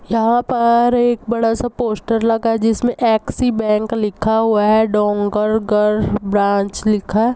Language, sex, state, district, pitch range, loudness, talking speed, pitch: Hindi, female, Chhattisgarh, Rajnandgaon, 210-235 Hz, -16 LUFS, 155 wpm, 225 Hz